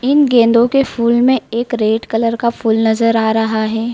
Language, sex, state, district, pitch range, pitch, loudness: Hindi, female, Madhya Pradesh, Dhar, 225-240 Hz, 230 Hz, -14 LUFS